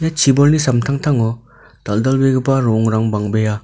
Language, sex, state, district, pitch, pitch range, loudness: Garo, male, Meghalaya, North Garo Hills, 125 Hz, 110-135 Hz, -15 LUFS